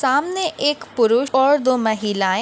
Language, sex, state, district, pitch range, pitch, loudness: Hindi, female, Maharashtra, Pune, 220-290 Hz, 260 Hz, -18 LUFS